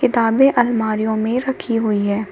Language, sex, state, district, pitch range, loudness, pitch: Hindi, female, Uttar Pradesh, Shamli, 220-245 Hz, -17 LUFS, 225 Hz